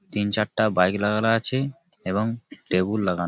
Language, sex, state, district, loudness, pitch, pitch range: Bengali, male, West Bengal, Malda, -23 LUFS, 105 Hz, 95-115 Hz